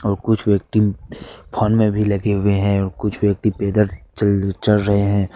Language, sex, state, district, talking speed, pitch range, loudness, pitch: Hindi, male, Jharkhand, Ranchi, 190 wpm, 100-105 Hz, -18 LUFS, 100 Hz